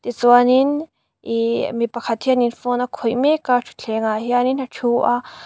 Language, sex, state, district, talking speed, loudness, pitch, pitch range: Mizo, female, Mizoram, Aizawl, 165 wpm, -19 LUFS, 245 Hz, 235-255 Hz